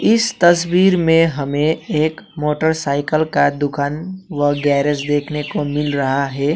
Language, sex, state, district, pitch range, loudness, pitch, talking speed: Hindi, male, West Bengal, Alipurduar, 145-165 Hz, -17 LUFS, 150 Hz, 135 wpm